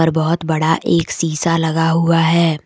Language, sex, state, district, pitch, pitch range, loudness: Hindi, female, Jharkhand, Deoghar, 165 Hz, 160-165 Hz, -16 LUFS